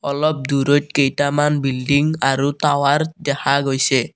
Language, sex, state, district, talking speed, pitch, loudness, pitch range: Assamese, male, Assam, Kamrup Metropolitan, 115 wpm, 140 Hz, -18 LUFS, 140-145 Hz